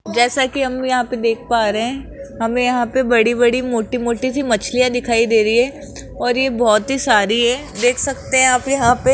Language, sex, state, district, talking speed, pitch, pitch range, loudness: Hindi, male, Rajasthan, Jaipur, 215 wpm, 245 Hz, 235-260 Hz, -16 LUFS